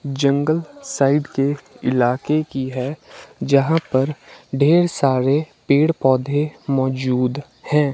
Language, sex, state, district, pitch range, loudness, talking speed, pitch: Hindi, male, Himachal Pradesh, Shimla, 130-150 Hz, -19 LUFS, 105 wpm, 140 Hz